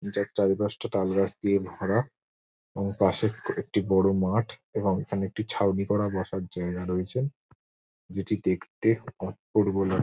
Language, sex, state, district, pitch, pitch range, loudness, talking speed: Bengali, male, West Bengal, Jhargram, 100 Hz, 95-105 Hz, -28 LUFS, 135 wpm